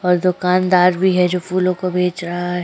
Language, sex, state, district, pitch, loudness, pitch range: Hindi, female, Uttar Pradesh, Jyotiba Phule Nagar, 180 Hz, -17 LUFS, 180-185 Hz